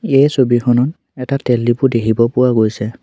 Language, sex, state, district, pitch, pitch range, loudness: Assamese, male, Assam, Sonitpur, 125 Hz, 115-135 Hz, -14 LUFS